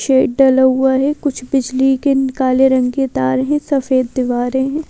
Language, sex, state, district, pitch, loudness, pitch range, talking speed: Hindi, female, Madhya Pradesh, Bhopal, 265 Hz, -15 LUFS, 260-270 Hz, 185 wpm